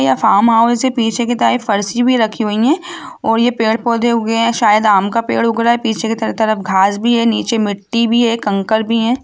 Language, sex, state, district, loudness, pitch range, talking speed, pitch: Hindi, female, Jharkhand, Jamtara, -14 LUFS, 215-235 Hz, 235 wpm, 230 Hz